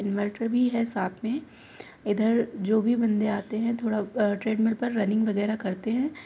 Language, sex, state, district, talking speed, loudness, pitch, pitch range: Hindi, female, Uttar Pradesh, Muzaffarnagar, 190 wpm, -26 LUFS, 220 Hz, 205-235 Hz